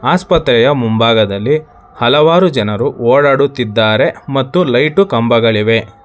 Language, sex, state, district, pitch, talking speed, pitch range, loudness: Kannada, male, Karnataka, Bangalore, 120 Hz, 80 wpm, 110-150 Hz, -12 LUFS